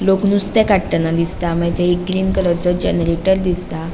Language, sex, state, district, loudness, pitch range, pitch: Konkani, female, Goa, North and South Goa, -16 LUFS, 170-190 Hz, 180 Hz